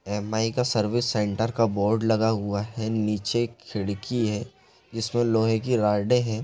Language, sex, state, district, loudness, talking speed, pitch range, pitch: Hindi, male, Bihar, Begusarai, -25 LUFS, 160 wpm, 105-115 Hz, 110 Hz